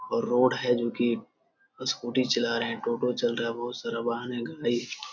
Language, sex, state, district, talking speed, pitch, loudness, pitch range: Hindi, male, Bihar, Jamui, 210 wpm, 120 Hz, -28 LUFS, 120-130 Hz